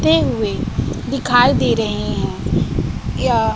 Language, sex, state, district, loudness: Hindi, female, Bihar, West Champaran, -18 LUFS